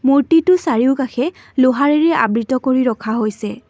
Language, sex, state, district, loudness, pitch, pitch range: Assamese, female, Assam, Kamrup Metropolitan, -16 LUFS, 260 Hz, 235-285 Hz